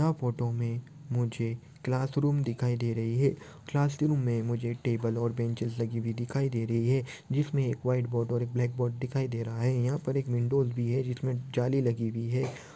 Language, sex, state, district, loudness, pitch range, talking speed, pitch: Hindi, male, Maharashtra, Aurangabad, -30 LUFS, 120-135 Hz, 205 wpm, 125 Hz